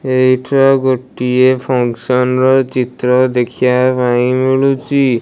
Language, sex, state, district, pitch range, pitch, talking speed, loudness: Odia, male, Odisha, Malkangiri, 125-130 Hz, 130 Hz, 80 wpm, -13 LUFS